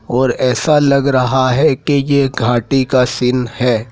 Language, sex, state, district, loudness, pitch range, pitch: Hindi, male, Madhya Pradesh, Dhar, -14 LUFS, 125-140 Hz, 130 Hz